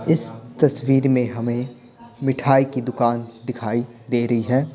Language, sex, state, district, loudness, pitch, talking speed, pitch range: Hindi, male, Bihar, Patna, -21 LUFS, 125 Hz, 140 wpm, 120-135 Hz